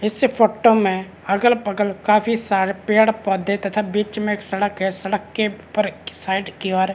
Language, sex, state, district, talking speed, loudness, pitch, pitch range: Hindi, male, Chhattisgarh, Rajnandgaon, 180 wpm, -20 LUFS, 205 Hz, 195-215 Hz